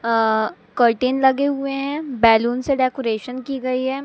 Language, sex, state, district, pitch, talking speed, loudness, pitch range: Hindi, female, Madhya Pradesh, Katni, 255 Hz, 165 wpm, -19 LUFS, 230-275 Hz